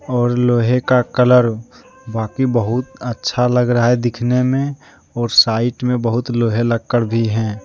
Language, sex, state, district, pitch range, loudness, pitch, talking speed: Hindi, male, Jharkhand, Deoghar, 115-125 Hz, -16 LUFS, 120 Hz, 155 wpm